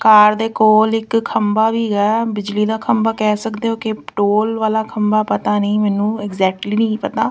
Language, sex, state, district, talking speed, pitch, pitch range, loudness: Punjabi, female, Punjab, Fazilka, 190 wpm, 215 Hz, 210-220 Hz, -16 LUFS